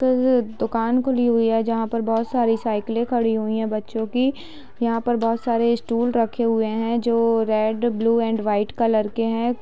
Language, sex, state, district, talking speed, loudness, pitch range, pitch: Hindi, female, Bihar, Sitamarhi, 210 wpm, -21 LUFS, 225-235 Hz, 230 Hz